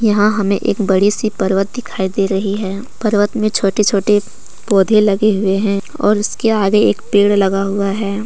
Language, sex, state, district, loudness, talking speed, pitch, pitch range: Hindi, female, Jharkhand, Deoghar, -15 LUFS, 190 wpm, 205 Hz, 195-215 Hz